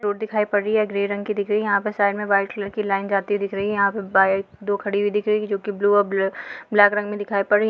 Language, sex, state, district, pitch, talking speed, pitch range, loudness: Hindi, female, Jharkhand, Jamtara, 205 Hz, 325 wpm, 200-210 Hz, -21 LUFS